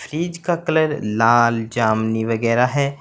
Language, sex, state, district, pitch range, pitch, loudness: Hindi, male, Uttar Pradesh, Saharanpur, 115-155 Hz, 120 Hz, -19 LUFS